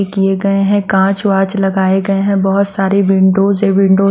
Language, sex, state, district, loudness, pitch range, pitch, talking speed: Hindi, female, Bihar, West Champaran, -12 LUFS, 195-200 Hz, 195 Hz, 205 wpm